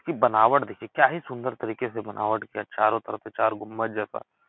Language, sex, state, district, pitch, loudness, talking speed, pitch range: Hindi, male, Uttar Pradesh, Etah, 110 Hz, -26 LUFS, 215 wpm, 110-115 Hz